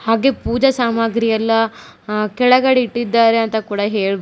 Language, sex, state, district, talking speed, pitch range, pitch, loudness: Kannada, female, Karnataka, Koppal, 140 wpm, 220-240 Hz, 230 Hz, -16 LUFS